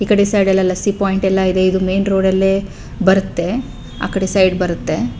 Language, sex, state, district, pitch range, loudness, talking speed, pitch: Kannada, female, Karnataka, Bellary, 185-195 Hz, -16 LUFS, 175 wpm, 190 Hz